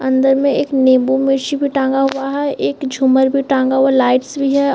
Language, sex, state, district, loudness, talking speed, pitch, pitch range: Hindi, female, Chhattisgarh, Bastar, -15 LUFS, 200 wpm, 270 Hz, 265-275 Hz